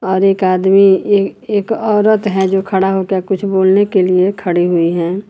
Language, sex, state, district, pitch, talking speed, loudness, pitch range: Hindi, female, Uttar Pradesh, Lucknow, 190 Hz, 180 wpm, -13 LUFS, 185-200 Hz